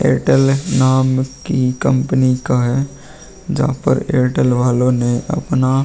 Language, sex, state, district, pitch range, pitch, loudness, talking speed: Hindi, male, Uttar Pradesh, Muzaffarnagar, 125-140 Hz, 130 Hz, -16 LUFS, 135 wpm